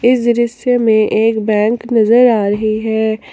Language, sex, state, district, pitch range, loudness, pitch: Hindi, female, Jharkhand, Palamu, 215-240 Hz, -13 LUFS, 225 Hz